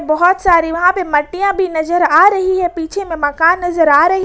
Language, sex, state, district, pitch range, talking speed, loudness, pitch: Hindi, female, Jharkhand, Ranchi, 325-375 Hz, 225 wpm, -13 LUFS, 350 Hz